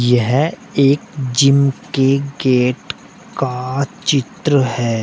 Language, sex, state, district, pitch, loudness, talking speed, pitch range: Hindi, male, Uttar Pradesh, Shamli, 135 Hz, -16 LUFS, 95 wpm, 125-145 Hz